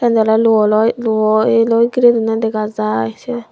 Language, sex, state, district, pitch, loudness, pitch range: Chakma, female, Tripura, Dhalai, 225 Hz, -14 LUFS, 215-230 Hz